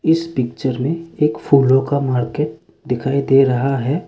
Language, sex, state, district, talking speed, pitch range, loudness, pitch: Hindi, male, Arunachal Pradesh, Lower Dibang Valley, 160 wpm, 125-150 Hz, -17 LUFS, 135 Hz